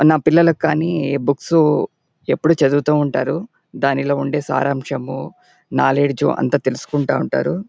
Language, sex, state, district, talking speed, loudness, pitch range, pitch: Telugu, male, Andhra Pradesh, Anantapur, 115 wpm, -18 LUFS, 140-160 Hz, 145 Hz